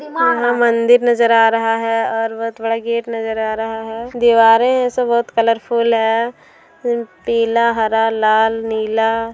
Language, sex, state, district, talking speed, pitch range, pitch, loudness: Hindi, female, Bihar, Gopalganj, 150 wpm, 225-235 Hz, 230 Hz, -16 LUFS